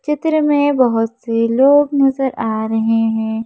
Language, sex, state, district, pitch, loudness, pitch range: Hindi, female, Madhya Pradesh, Bhopal, 240 Hz, -15 LUFS, 225-285 Hz